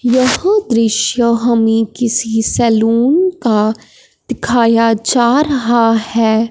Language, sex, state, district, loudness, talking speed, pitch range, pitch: Hindi, male, Punjab, Fazilka, -13 LUFS, 90 wpm, 225-245 Hz, 230 Hz